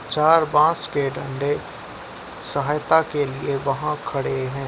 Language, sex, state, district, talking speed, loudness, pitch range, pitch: Hindi, male, Bihar, Darbhanga, 130 wpm, -21 LUFS, 135-150 Hz, 145 Hz